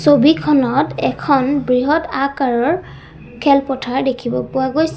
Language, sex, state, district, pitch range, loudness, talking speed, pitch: Assamese, female, Assam, Sonitpur, 260-285 Hz, -16 LUFS, 95 wpm, 275 Hz